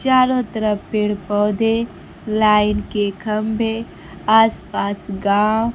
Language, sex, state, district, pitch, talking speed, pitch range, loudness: Hindi, female, Bihar, Kaimur, 215 Hz, 105 wpm, 205-225 Hz, -18 LUFS